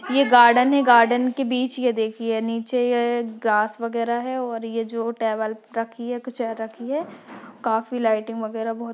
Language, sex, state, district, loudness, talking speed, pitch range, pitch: Hindi, female, Chhattisgarh, Bastar, -22 LUFS, 190 wpm, 225-245 Hz, 230 Hz